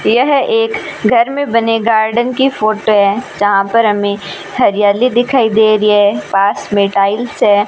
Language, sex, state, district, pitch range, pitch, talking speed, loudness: Hindi, female, Rajasthan, Bikaner, 205-240 Hz, 215 Hz, 165 wpm, -12 LUFS